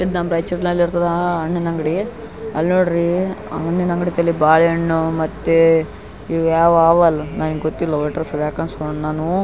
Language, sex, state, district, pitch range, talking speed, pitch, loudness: Kannada, male, Karnataka, Raichur, 160-175 Hz, 125 wpm, 165 Hz, -18 LUFS